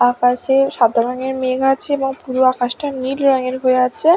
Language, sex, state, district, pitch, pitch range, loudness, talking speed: Bengali, female, West Bengal, Dakshin Dinajpur, 260 Hz, 250-270 Hz, -17 LUFS, 175 wpm